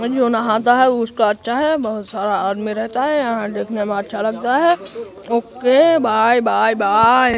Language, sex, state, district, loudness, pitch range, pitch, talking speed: Hindi, male, Bihar, Katihar, -17 LUFS, 215-255 Hz, 230 Hz, 195 wpm